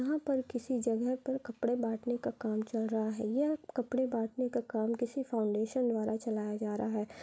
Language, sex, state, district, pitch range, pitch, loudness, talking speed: Hindi, female, Bihar, Gaya, 220-255 Hz, 235 Hz, -34 LUFS, 200 wpm